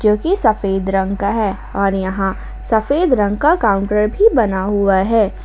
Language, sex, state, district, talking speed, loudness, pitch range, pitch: Hindi, female, Jharkhand, Ranchi, 175 wpm, -16 LUFS, 195-220 Hz, 205 Hz